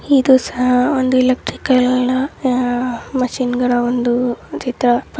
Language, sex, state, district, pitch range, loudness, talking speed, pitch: Kannada, male, Karnataka, Dharwad, 245-255 Hz, -16 LUFS, 90 wpm, 250 Hz